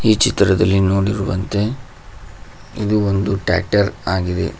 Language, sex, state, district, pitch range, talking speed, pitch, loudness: Kannada, male, Karnataka, Koppal, 95-105 Hz, 90 wpm, 100 Hz, -17 LUFS